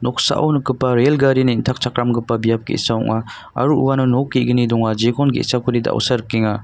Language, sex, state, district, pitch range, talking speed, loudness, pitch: Garo, male, Meghalaya, North Garo Hills, 115-130 Hz, 155 wpm, -17 LUFS, 125 Hz